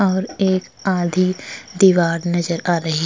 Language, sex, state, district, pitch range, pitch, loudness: Hindi, female, Uttar Pradesh, Jyotiba Phule Nagar, 170-190 Hz, 185 Hz, -18 LUFS